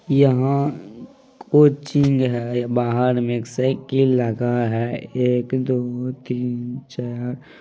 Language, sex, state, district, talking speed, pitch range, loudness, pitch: Maithili, male, Bihar, Madhepura, 105 wpm, 120-140 Hz, -20 LUFS, 125 Hz